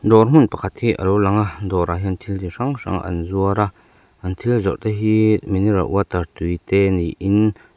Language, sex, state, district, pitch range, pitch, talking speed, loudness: Mizo, male, Mizoram, Aizawl, 90-105 Hz, 100 Hz, 200 wpm, -19 LUFS